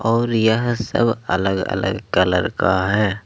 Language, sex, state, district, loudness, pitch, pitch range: Hindi, male, Jharkhand, Ranchi, -19 LUFS, 105 Hz, 95-115 Hz